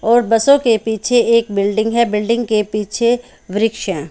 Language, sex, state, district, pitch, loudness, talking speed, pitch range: Hindi, female, Haryana, Charkhi Dadri, 225 Hz, -15 LUFS, 175 wpm, 210-235 Hz